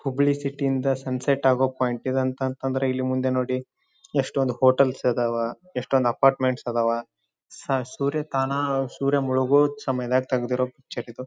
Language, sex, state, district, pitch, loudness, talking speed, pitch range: Kannada, male, Karnataka, Dharwad, 130 Hz, -24 LUFS, 135 wpm, 130-135 Hz